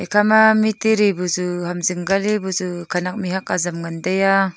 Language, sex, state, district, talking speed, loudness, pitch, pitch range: Wancho, female, Arunachal Pradesh, Longding, 195 wpm, -19 LUFS, 190 Hz, 180-210 Hz